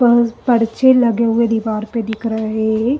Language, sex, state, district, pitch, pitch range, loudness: Hindi, female, Uttar Pradesh, Jalaun, 230 Hz, 220-240 Hz, -16 LUFS